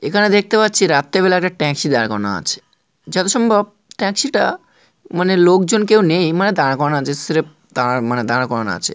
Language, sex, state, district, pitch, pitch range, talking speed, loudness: Bengali, male, West Bengal, North 24 Parganas, 180 Hz, 140-205 Hz, 170 wpm, -16 LUFS